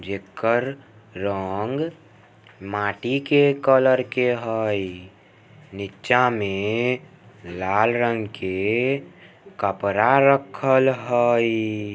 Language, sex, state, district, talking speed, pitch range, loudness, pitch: Maithili, male, Bihar, Samastipur, 75 wpm, 100-130 Hz, -21 LUFS, 115 Hz